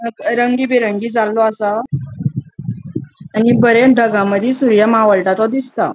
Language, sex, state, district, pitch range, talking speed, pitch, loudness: Konkani, female, Goa, North and South Goa, 190-240 Hz, 110 wpm, 220 Hz, -14 LUFS